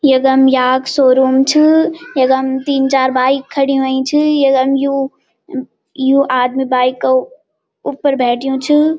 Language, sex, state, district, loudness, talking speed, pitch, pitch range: Garhwali, female, Uttarakhand, Uttarkashi, -13 LUFS, 135 wpm, 265 Hz, 260-280 Hz